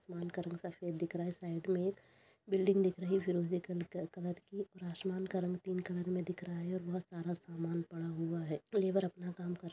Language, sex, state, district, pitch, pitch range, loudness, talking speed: Hindi, female, Uttar Pradesh, Budaun, 180 Hz, 170-185 Hz, -39 LUFS, 220 wpm